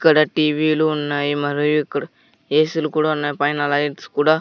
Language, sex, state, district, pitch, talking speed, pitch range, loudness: Telugu, male, Andhra Pradesh, Sri Satya Sai, 150 Hz, 175 wpm, 145-155 Hz, -19 LUFS